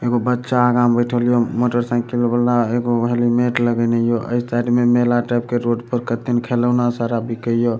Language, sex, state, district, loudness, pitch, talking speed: Maithili, male, Bihar, Supaul, -18 LUFS, 120 Hz, 210 wpm